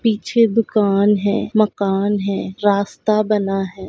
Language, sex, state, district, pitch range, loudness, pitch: Hindi, female, Goa, North and South Goa, 195-215 Hz, -18 LUFS, 205 Hz